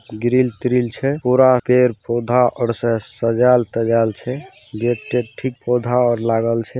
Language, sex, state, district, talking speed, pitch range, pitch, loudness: Hindi, male, Bihar, Saharsa, 150 wpm, 115-125 Hz, 120 Hz, -18 LUFS